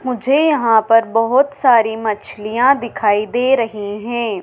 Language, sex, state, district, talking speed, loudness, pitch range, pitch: Hindi, female, Madhya Pradesh, Dhar, 135 wpm, -15 LUFS, 215-255 Hz, 230 Hz